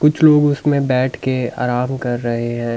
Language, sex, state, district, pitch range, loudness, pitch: Hindi, male, Delhi, New Delhi, 120-145 Hz, -17 LUFS, 130 Hz